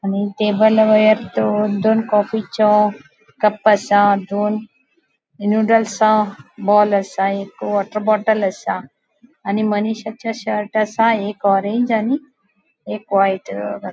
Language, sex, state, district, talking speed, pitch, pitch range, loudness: Konkani, female, Goa, North and South Goa, 120 wpm, 210 Hz, 205-220 Hz, -17 LUFS